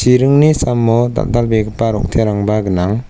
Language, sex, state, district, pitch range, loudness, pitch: Garo, male, Meghalaya, South Garo Hills, 105-125 Hz, -14 LUFS, 115 Hz